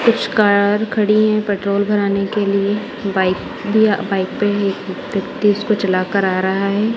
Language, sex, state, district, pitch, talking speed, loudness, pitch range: Hindi, female, Punjab, Kapurthala, 205 Hz, 180 wpm, -17 LUFS, 195-210 Hz